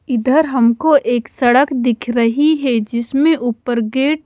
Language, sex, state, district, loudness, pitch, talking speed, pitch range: Hindi, female, Haryana, Charkhi Dadri, -15 LUFS, 250 Hz, 155 wpm, 240-285 Hz